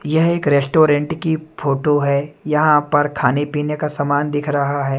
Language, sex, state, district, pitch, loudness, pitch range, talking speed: Hindi, male, Odisha, Nuapada, 145 Hz, -17 LUFS, 145-155 Hz, 180 wpm